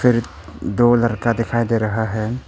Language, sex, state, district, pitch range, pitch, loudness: Hindi, male, Arunachal Pradesh, Papum Pare, 110-120 Hz, 115 Hz, -19 LUFS